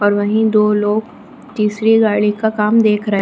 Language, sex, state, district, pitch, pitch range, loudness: Hindi, female, Bihar, Jamui, 210 Hz, 210-220 Hz, -14 LUFS